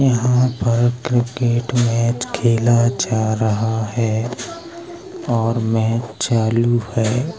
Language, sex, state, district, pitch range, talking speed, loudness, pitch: Hindi, male, Uttar Pradesh, Hamirpur, 115-125 Hz, 95 wpm, -18 LUFS, 120 Hz